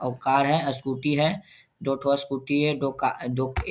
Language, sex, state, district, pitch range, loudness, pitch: Hindi, male, Bihar, Saharsa, 135-145 Hz, -25 LUFS, 140 Hz